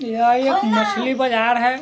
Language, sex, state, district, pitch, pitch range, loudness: Hindi, male, Bihar, Vaishali, 240 Hz, 225-255 Hz, -18 LUFS